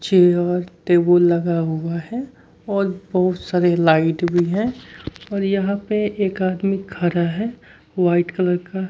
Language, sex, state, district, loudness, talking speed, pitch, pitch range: Hindi, male, Bihar, Kaimur, -19 LUFS, 140 wpm, 180 Hz, 175-195 Hz